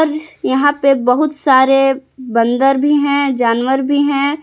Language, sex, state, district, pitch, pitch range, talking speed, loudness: Hindi, female, Jharkhand, Palamu, 275 Hz, 260-285 Hz, 135 wpm, -14 LUFS